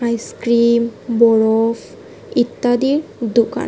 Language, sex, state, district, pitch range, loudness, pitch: Bengali, female, Tripura, West Tripura, 230-250 Hz, -16 LUFS, 235 Hz